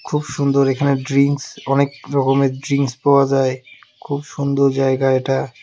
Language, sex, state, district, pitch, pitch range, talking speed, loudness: Bengali, male, West Bengal, Alipurduar, 140 Hz, 135-140 Hz, 140 wpm, -18 LUFS